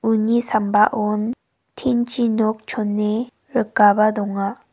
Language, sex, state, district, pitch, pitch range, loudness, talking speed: Garo, female, Meghalaya, West Garo Hills, 220 Hz, 210-240 Hz, -19 LUFS, 90 wpm